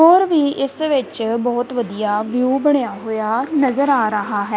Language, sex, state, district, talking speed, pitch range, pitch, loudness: Punjabi, female, Punjab, Kapurthala, 170 wpm, 220-280 Hz, 245 Hz, -18 LUFS